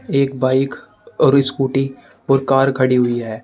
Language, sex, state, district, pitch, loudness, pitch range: Hindi, male, Uttar Pradesh, Shamli, 135 Hz, -17 LUFS, 130-135 Hz